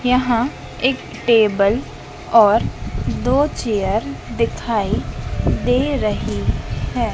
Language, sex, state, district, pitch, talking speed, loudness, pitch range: Hindi, female, Madhya Pradesh, Dhar, 235 Hz, 85 wpm, -19 LUFS, 215-255 Hz